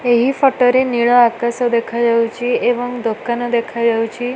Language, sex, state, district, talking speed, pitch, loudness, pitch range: Odia, female, Odisha, Malkangiri, 165 wpm, 240 Hz, -16 LUFS, 235-245 Hz